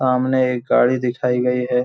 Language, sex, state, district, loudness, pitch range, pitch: Hindi, male, Jharkhand, Jamtara, -18 LUFS, 125-130 Hz, 125 Hz